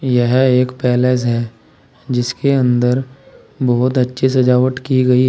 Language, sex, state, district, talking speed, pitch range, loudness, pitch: Hindi, male, Uttar Pradesh, Saharanpur, 125 wpm, 125-130 Hz, -15 LUFS, 125 Hz